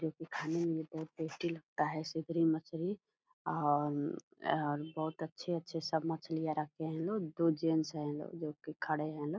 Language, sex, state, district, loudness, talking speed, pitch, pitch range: Hindi, female, Bihar, Purnia, -37 LUFS, 185 wpm, 160 Hz, 155-165 Hz